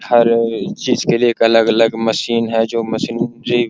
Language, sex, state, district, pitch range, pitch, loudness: Hindi, male, Bihar, Araria, 115-120 Hz, 115 Hz, -15 LUFS